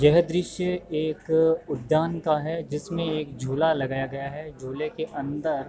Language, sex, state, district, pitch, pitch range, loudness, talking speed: Hindi, male, Uttar Pradesh, Varanasi, 155 Hz, 145-160 Hz, -26 LUFS, 170 wpm